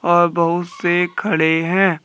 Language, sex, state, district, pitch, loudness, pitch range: Hindi, male, Jharkhand, Deoghar, 175 Hz, -17 LUFS, 170-180 Hz